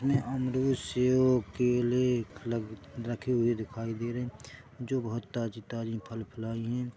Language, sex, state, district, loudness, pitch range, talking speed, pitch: Hindi, male, Chhattisgarh, Korba, -31 LUFS, 115-125 Hz, 155 wpm, 120 Hz